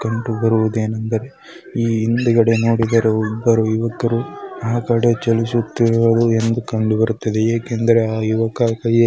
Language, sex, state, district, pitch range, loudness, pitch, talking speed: Kannada, male, Karnataka, Mysore, 110-115 Hz, -17 LUFS, 115 Hz, 105 wpm